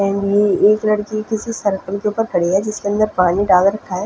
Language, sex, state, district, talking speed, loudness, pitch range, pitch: Hindi, female, Punjab, Fazilka, 235 wpm, -17 LUFS, 195-215 Hz, 205 Hz